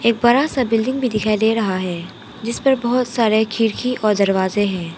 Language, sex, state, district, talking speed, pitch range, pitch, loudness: Hindi, female, Arunachal Pradesh, Papum Pare, 190 wpm, 205-245 Hz, 225 Hz, -18 LUFS